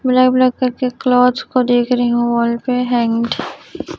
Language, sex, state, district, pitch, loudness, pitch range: Hindi, female, Chhattisgarh, Raipur, 250 Hz, -15 LUFS, 240-255 Hz